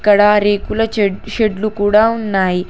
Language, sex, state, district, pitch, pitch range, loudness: Telugu, female, Telangana, Hyderabad, 210 Hz, 200-220 Hz, -14 LUFS